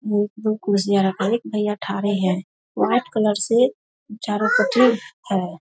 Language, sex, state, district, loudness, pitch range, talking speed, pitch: Hindi, female, Bihar, Darbhanga, -21 LUFS, 195-220 Hz, 170 wpm, 210 Hz